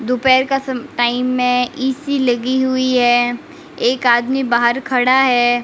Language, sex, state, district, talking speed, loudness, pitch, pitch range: Hindi, female, Rajasthan, Bikaner, 150 wpm, -15 LUFS, 250 Hz, 245-260 Hz